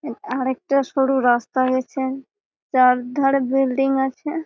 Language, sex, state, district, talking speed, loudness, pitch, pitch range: Bengali, female, West Bengal, Malda, 135 wpm, -20 LUFS, 265 Hz, 255-275 Hz